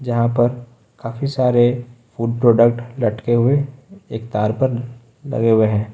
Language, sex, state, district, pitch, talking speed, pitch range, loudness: Hindi, male, Uttar Pradesh, Lucknow, 120 Hz, 140 wpm, 115-125 Hz, -18 LUFS